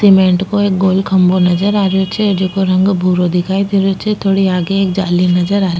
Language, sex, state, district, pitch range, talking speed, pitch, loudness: Rajasthani, female, Rajasthan, Nagaur, 185-195 Hz, 240 wpm, 190 Hz, -13 LUFS